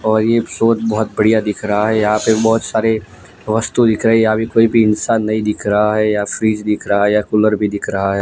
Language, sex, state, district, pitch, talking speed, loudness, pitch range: Hindi, male, Gujarat, Gandhinagar, 110 Hz, 255 wpm, -15 LUFS, 105-110 Hz